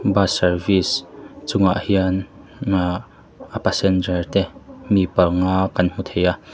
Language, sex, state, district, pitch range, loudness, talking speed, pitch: Mizo, male, Mizoram, Aizawl, 90-100 Hz, -20 LUFS, 130 wpm, 95 Hz